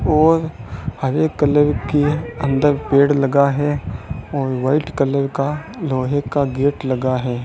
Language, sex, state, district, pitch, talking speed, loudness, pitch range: Hindi, male, Rajasthan, Bikaner, 140 Hz, 135 wpm, -18 LUFS, 135-145 Hz